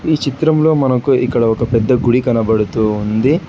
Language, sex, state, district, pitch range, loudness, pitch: Telugu, male, Telangana, Hyderabad, 115-140 Hz, -14 LUFS, 125 Hz